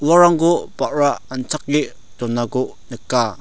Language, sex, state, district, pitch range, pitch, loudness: Garo, male, Meghalaya, South Garo Hills, 125-155 Hz, 145 Hz, -19 LUFS